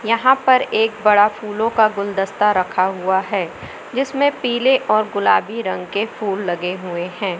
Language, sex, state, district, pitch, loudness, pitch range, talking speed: Hindi, male, Madhya Pradesh, Katni, 210 Hz, -18 LUFS, 190-230 Hz, 160 wpm